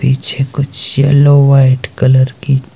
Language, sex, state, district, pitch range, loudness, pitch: Hindi, male, Himachal Pradesh, Shimla, 130-140 Hz, -11 LUFS, 135 Hz